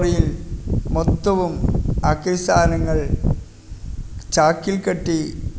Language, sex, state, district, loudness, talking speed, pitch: Malayalam, male, Kerala, Kasaragod, -20 LUFS, 65 wpm, 160 Hz